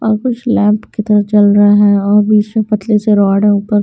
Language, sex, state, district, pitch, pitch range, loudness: Hindi, female, Bihar, Patna, 210 Hz, 205-215 Hz, -11 LUFS